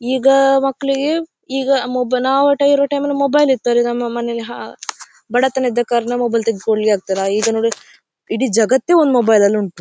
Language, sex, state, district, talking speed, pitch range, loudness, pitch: Kannada, female, Karnataka, Dakshina Kannada, 135 wpm, 230-275 Hz, -16 LUFS, 250 Hz